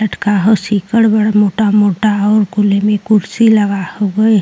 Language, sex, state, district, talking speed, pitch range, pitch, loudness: Bhojpuri, female, Uttar Pradesh, Deoria, 165 wpm, 200-215 Hz, 210 Hz, -12 LUFS